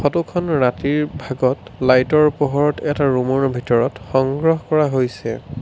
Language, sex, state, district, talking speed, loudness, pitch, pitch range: Assamese, male, Assam, Sonitpur, 85 wpm, -18 LUFS, 140 Hz, 130-150 Hz